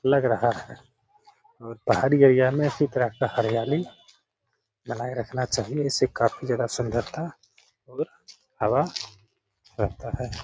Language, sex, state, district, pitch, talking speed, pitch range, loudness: Hindi, male, Bihar, Gaya, 130 Hz, 125 wpm, 115-140 Hz, -25 LUFS